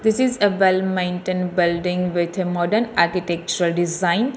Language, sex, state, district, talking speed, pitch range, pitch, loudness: English, female, Telangana, Hyderabad, 150 wpm, 175-195 Hz, 180 Hz, -20 LUFS